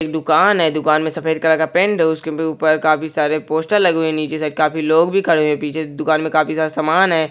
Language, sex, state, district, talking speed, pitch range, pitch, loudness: Hindi, male, Bihar, Araria, 255 wpm, 155-160 Hz, 160 Hz, -16 LUFS